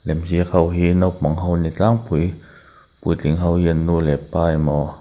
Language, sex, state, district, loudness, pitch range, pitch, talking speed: Mizo, male, Mizoram, Aizawl, -19 LUFS, 80-85 Hz, 85 Hz, 205 wpm